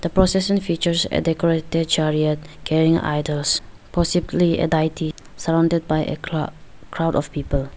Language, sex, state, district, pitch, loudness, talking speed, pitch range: English, female, Arunachal Pradesh, Lower Dibang Valley, 165 Hz, -21 LUFS, 140 wpm, 155-170 Hz